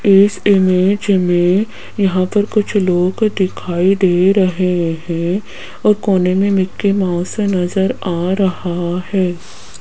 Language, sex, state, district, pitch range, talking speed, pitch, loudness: Hindi, female, Rajasthan, Jaipur, 180-200 Hz, 120 wpm, 190 Hz, -15 LUFS